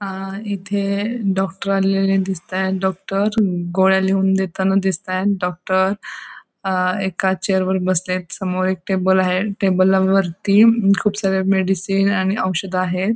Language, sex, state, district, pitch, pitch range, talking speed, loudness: Marathi, female, Goa, North and South Goa, 190 Hz, 185-195 Hz, 125 wpm, -19 LUFS